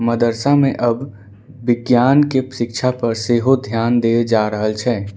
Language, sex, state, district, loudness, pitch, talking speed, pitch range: Angika, male, Bihar, Bhagalpur, -17 LUFS, 120 Hz, 160 wpm, 115-130 Hz